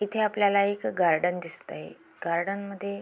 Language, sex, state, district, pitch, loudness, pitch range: Marathi, female, Maharashtra, Aurangabad, 200 Hz, -27 LUFS, 175-200 Hz